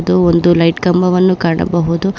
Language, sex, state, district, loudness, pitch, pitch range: Kannada, female, Karnataka, Bangalore, -12 LUFS, 175 Hz, 170-180 Hz